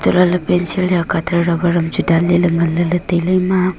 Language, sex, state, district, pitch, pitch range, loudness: Wancho, female, Arunachal Pradesh, Longding, 175 Hz, 170-180 Hz, -15 LUFS